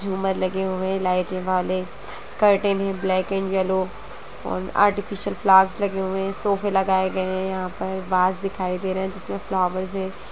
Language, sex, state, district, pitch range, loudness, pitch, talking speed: Hindi, female, Chhattisgarh, Bastar, 185-195 Hz, -23 LUFS, 190 Hz, 180 wpm